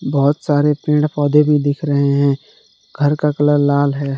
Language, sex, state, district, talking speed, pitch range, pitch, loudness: Hindi, male, Jharkhand, Garhwa, 185 wpm, 140-150 Hz, 145 Hz, -16 LUFS